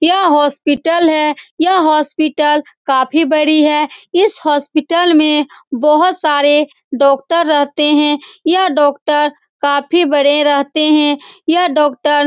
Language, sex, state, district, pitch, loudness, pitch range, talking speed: Hindi, female, Bihar, Saran, 300 Hz, -12 LUFS, 290-320 Hz, 120 wpm